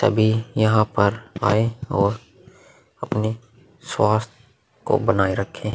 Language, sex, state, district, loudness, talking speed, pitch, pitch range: Hindi, male, Uttar Pradesh, Muzaffarnagar, -21 LUFS, 105 wpm, 110 Hz, 105-115 Hz